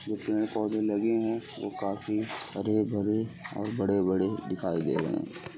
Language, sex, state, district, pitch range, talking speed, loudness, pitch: Bhojpuri, male, Uttar Pradesh, Gorakhpur, 100-110 Hz, 160 wpm, -30 LUFS, 105 Hz